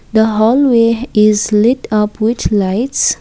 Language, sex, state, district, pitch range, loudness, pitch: English, female, Assam, Kamrup Metropolitan, 210-235 Hz, -12 LUFS, 220 Hz